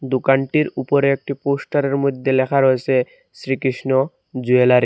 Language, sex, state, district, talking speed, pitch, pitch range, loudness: Bengali, male, Assam, Hailakandi, 125 wpm, 135 Hz, 130-140 Hz, -19 LUFS